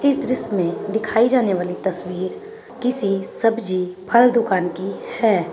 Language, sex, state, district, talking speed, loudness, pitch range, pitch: Magahi, female, Bihar, Gaya, 140 wpm, -20 LUFS, 185-240 Hz, 205 Hz